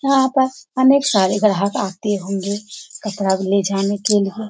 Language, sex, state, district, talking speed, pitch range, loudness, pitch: Hindi, female, Bihar, Jamui, 160 wpm, 195-220 Hz, -18 LUFS, 205 Hz